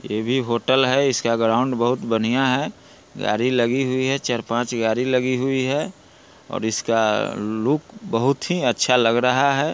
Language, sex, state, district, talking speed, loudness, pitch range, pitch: Hindi, male, Bihar, Muzaffarpur, 170 wpm, -21 LUFS, 115-135 Hz, 125 Hz